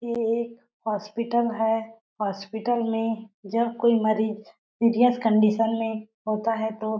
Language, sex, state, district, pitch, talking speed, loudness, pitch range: Hindi, female, Chhattisgarh, Balrampur, 225 Hz, 130 wpm, -25 LUFS, 220-230 Hz